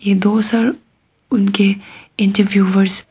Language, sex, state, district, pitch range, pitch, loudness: Hindi, female, Arunachal Pradesh, Papum Pare, 195-215 Hz, 200 Hz, -15 LUFS